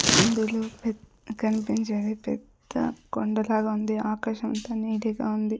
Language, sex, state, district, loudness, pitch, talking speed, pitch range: Telugu, female, Andhra Pradesh, Sri Satya Sai, -27 LUFS, 220 Hz, 130 wpm, 215-225 Hz